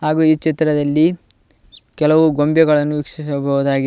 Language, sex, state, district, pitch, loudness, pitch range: Kannada, male, Karnataka, Koppal, 150 Hz, -16 LUFS, 145-160 Hz